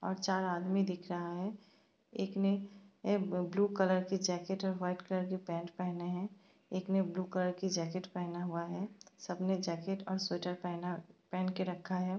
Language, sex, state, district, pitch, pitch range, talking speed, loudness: Hindi, female, Bihar, Bhagalpur, 185 Hz, 180-190 Hz, 185 wpm, -37 LUFS